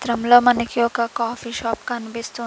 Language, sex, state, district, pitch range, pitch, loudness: Telugu, female, Andhra Pradesh, Chittoor, 230-240 Hz, 235 Hz, -20 LUFS